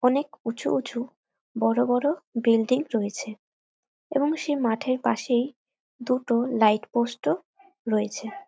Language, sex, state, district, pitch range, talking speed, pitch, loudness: Bengali, female, West Bengal, North 24 Parganas, 225-275 Hz, 115 wpm, 245 Hz, -26 LUFS